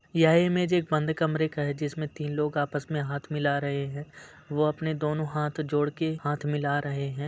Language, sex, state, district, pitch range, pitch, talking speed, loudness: Hindi, male, Bihar, Gaya, 145-155 Hz, 150 Hz, 215 wpm, -28 LUFS